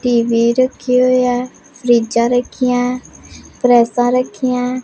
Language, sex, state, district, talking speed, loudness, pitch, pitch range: Hindi, female, Punjab, Pathankot, 125 wpm, -15 LUFS, 250 Hz, 240-255 Hz